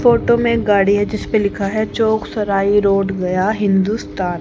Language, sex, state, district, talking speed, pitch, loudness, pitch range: Hindi, female, Haryana, Charkhi Dadri, 190 wpm, 205 Hz, -16 LUFS, 195-220 Hz